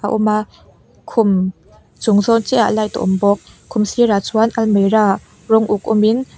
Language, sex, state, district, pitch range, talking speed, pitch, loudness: Mizo, female, Mizoram, Aizawl, 205-225 Hz, 170 wpm, 215 Hz, -16 LUFS